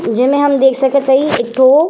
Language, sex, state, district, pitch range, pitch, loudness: Bhojpuri, female, Uttar Pradesh, Gorakhpur, 260-285 Hz, 270 Hz, -12 LUFS